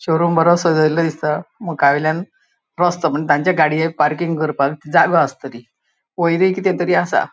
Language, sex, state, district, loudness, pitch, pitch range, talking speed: Konkani, female, Goa, North and South Goa, -17 LUFS, 160 Hz, 150-175 Hz, 140 wpm